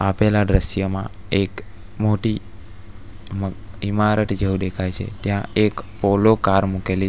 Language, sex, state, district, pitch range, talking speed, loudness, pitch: Gujarati, male, Gujarat, Valsad, 95-105 Hz, 125 wpm, -21 LUFS, 100 Hz